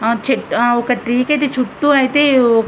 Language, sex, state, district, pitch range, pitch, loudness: Telugu, female, Andhra Pradesh, Visakhapatnam, 240-275 Hz, 250 Hz, -15 LUFS